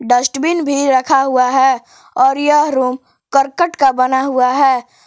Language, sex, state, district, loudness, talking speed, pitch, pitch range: Hindi, female, Jharkhand, Palamu, -14 LUFS, 155 wpm, 265 Hz, 255-280 Hz